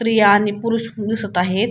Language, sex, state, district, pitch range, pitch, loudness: Marathi, female, Maharashtra, Pune, 205-225 Hz, 215 Hz, -18 LUFS